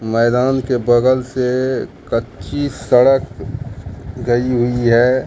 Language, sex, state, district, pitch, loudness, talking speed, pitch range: Hindi, male, Bihar, Katihar, 125 Hz, -16 LUFS, 105 wpm, 115-130 Hz